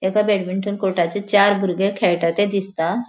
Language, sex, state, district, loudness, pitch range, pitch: Konkani, female, Goa, North and South Goa, -19 LUFS, 185-205 Hz, 195 Hz